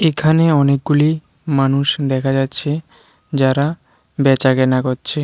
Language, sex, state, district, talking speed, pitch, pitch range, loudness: Bengali, male, Tripura, West Tripura, 90 wpm, 140 Hz, 135-155 Hz, -16 LUFS